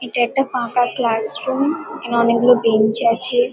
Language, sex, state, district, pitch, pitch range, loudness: Bengali, female, West Bengal, Kolkata, 245 Hz, 235-255 Hz, -17 LUFS